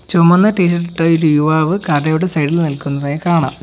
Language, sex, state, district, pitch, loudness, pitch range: Malayalam, male, Kerala, Kollam, 165 Hz, -14 LUFS, 150-170 Hz